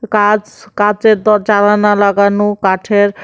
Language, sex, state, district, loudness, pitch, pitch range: Bengali, female, Tripura, West Tripura, -12 LUFS, 205 Hz, 205-210 Hz